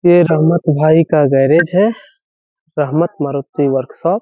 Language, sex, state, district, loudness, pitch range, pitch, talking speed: Hindi, male, Bihar, Saharsa, -13 LUFS, 150-175 Hz, 160 Hz, 140 wpm